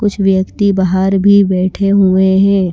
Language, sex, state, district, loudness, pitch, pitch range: Hindi, female, Himachal Pradesh, Shimla, -11 LUFS, 195 Hz, 190-200 Hz